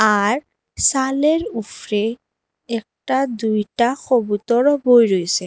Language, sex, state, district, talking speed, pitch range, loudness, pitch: Bengali, female, Assam, Hailakandi, 90 wpm, 210-265 Hz, -18 LUFS, 235 Hz